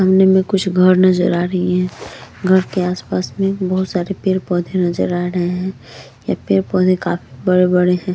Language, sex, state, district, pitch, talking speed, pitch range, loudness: Hindi, female, Chhattisgarh, Korba, 185 Hz, 175 wpm, 180-190 Hz, -16 LUFS